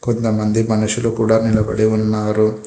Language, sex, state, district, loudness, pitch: Telugu, male, Telangana, Hyderabad, -17 LUFS, 110 Hz